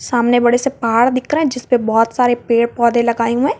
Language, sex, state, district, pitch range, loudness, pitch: Hindi, female, Jharkhand, Garhwa, 235-250 Hz, -15 LUFS, 240 Hz